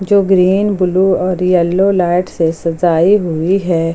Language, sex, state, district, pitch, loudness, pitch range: Hindi, female, Jharkhand, Palamu, 180 Hz, -13 LUFS, 170-190 Hz